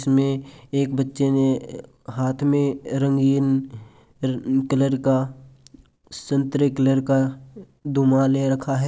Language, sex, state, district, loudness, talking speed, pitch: Hindi, male, Rajasthan, Churu, -22 LUFS, 110 wpm, 135 Hz